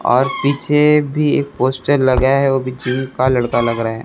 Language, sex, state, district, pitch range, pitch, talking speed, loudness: Hindi, male, Chhattisgarh, Raipur, 125-140 Hz, 130 Hz, 190 wpm, -16 LUFS